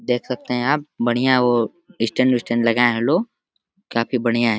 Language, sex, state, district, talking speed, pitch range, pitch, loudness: Hindi, male, Uttar Pradesh, Deoria, 185 wpm, 115-130 Hz, 125 Hz, -20 LUFS